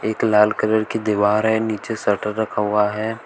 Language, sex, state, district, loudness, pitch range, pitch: Hindi, male, Uttar Pradesh, Shamli, -19 LUFS, 105-110 Hz, 110 Hz